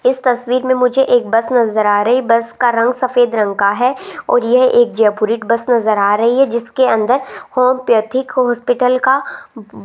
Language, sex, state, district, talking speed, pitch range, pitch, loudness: Hindi, female, Rajasthan, Jaipur, 185 wpm, 230-255 Hz, 245 Hz, -14 LUFS